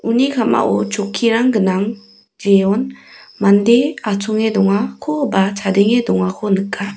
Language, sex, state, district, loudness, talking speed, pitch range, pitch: Garo, female, Meghalaya, West Garo Hills, -16 LUFS, 105 wpm, 195-235 Hz, 210 Hz